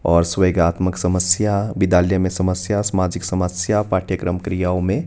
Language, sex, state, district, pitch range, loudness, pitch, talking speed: Hindi, male, Himachal Pradesh, Shimla, 90-95 Hz, -19 LUFS, 95 Hz, 130 wpm